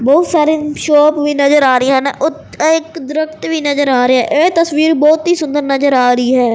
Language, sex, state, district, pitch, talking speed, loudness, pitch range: Punjabi, male, Punjab, Fazilka, 295 Hz, 230 wpm, -12 LUFS, 270-315 Hz